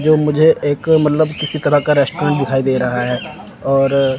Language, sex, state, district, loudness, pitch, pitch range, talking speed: Hindi, male, Chandigarh, Chandigarh, -15 LUFS, 145 Hz, 135-155 Hz, 185 wpm